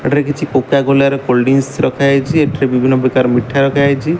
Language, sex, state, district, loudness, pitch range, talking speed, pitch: Odia, male, Odisha, Malkangiri, -13 LUFS, 130-140 Hz, 155 wpm, 140 Hz